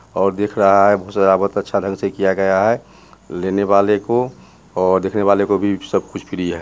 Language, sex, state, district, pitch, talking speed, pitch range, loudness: Hindi, male, Bihar, Muzaffarpur, 100 Hz, 215 wpm, 95-100 Hz, -17 LUFS